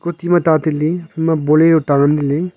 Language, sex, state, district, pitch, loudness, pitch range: Wancho, male, Arunachal Pradesh, Longding, 160 Hz, -15 LUFS, 150-170 Hz